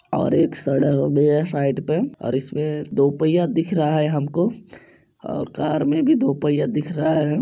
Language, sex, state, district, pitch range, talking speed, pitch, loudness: Maithili, male, Bihar, Supaul, 145-160 Hz, 195 wpm, 150 Hz, -21 LUFS